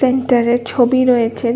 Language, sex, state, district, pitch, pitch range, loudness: Bengali, female, West Bengal, Kolkata, 245 Hz, 235-255 Hz, -14 LUFS